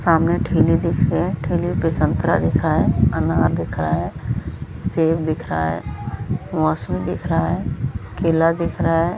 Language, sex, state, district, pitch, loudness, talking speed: Hindi, female, Chhattisgarh, Balrampur, 160 Hz, -20 LUFS, 190 wpm